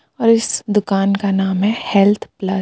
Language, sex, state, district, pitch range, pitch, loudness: Hindi, female, Jharkhand, Palamu, 195-215 Hz, 200 Hz, -16 LUFS